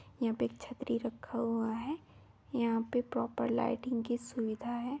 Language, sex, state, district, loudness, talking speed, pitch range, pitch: Hindi, female, West Bengal, Paschim Medinipur, -36 LUFS, 155 wpm, 230-245 Hz, 235 Hz